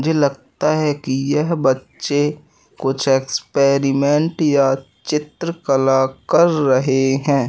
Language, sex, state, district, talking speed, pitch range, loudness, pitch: Hindi, male, Madhya Pradesh, Katni, 105 wpm, 135-150 Hz, -18 LUFS, 140 Hz